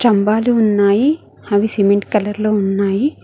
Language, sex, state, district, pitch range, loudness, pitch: Telugu, female, Telangana, Mahabubabad, 200-225 Hz, -15 LUFS, 210 Hz